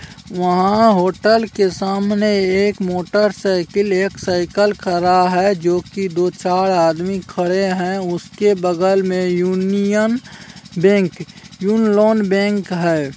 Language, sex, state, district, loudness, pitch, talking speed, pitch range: Hindi, male, Bihar, Araria, -16 LUFS, 190 Hz, 125 wpm, 180-200 Hz